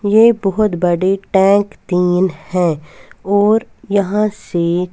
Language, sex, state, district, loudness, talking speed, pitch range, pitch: Hindi, female, Punjab, Fazilka, -15 LUFS, 120 wpm, 180-205 Hz, 195 Hz